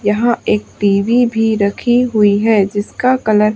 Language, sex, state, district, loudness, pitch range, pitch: Hindi, female, Madhya Pradesh, Umaria, -14 LUFS, 205-240 Hz, 215 Hz